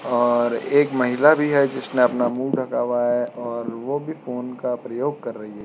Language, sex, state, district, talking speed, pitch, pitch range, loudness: Hindi, male, Uttarakhand, Tehri Garhwal, 215 wpm, 125 Hz, 120-135 Hz, -21 LUFS